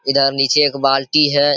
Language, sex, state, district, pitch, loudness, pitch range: Hindi, male, Bihar, Saharsa, 140 Hz, -14 LUFS, 135-145 Hz